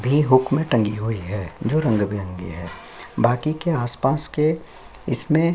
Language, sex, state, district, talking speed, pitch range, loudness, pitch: Hindi, male, Chhattisgarh, Sukma, 150 wpm, 105-155 Hz, -22 LUFS, 125 Hz